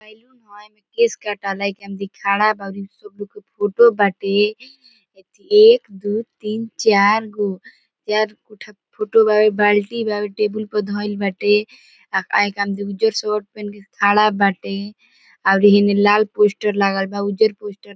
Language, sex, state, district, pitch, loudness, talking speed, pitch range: Bhojpuri, female, Bihar, Gopalganj, 210 Hz, -17 LUFS, 140 wpm, 200-215 Hz